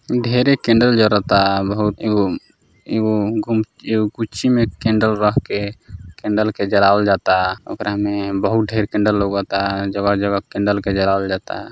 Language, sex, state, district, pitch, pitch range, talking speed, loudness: Maithili, male, Bihar, Samastipur, 105 Hz, 100-110 Hz, 140 wpm, -18 LUFS